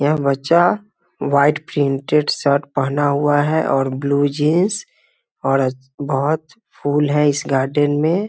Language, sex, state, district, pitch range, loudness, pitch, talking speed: Hindi, male, Bihar, Muzaffarpur, 140-155 Hz, -18 LUFS, 145 Hz, 130 wpm